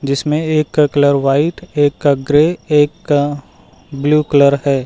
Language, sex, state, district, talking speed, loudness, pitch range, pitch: Hindi, male, Uttar Pradesh, Lucknow, 160 wpm, -14 LUFS, 140-150 Hz, 145 Hz